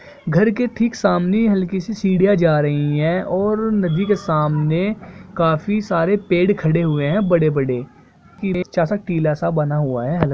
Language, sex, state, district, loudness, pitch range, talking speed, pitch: Hindi, male, Jharkhand, Jamtara, -18 LUFS, 155-200 Hz, 150 wpm, 180 Hz